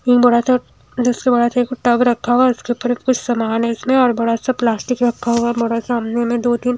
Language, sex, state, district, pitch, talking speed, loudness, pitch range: Hindi, female, Himachal Pradesh, Shimla, 245 Hz, 210 wpm, -17 LUFS, 235-250 Hz